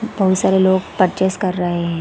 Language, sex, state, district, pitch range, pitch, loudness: Hindi, female, Chhattisgarh, Sarguja, 175-190 Hz, 185 Hz, -17 LUFS